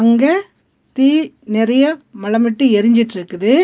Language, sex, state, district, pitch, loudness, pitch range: Tamil, female, Tamil Nadu, Nilgiris, 235 Hz, -15 LUFS, 220-280 Hz